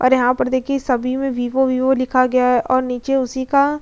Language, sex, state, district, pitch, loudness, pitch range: Hindi, female, Bihar, Vaishali, 255 Hz, -18 LUFS, 250-265 Hz